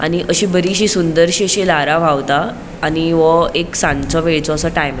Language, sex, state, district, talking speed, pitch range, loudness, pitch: Konkani, female, Goa, North and South Goa, 180 wpm, 155-180 Hz, -14 LUFS, 165 Hz